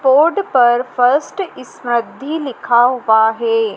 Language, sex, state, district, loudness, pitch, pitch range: Hindi, female, Madhya Pradesh, Dhar, -15 LUFS, 245 Hz, 235-275 Hz